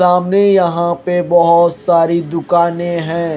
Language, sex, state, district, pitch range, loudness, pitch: Hindi, male, Himachal Pradesh, Shimla, 170-180 Hz, -13 LUFS, 170 Hz